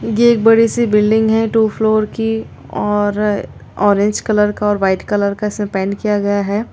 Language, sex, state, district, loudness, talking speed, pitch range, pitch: Hindi, female, Bihar, East Champaran, -15 LUFS, 185 wpm, 205-220 Hz, 210 Hz